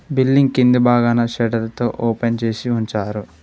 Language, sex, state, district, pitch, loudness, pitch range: Telugu, male, Telangana, Mahabubabad, 115 Hz, -17 LUFS, 115-125 Hz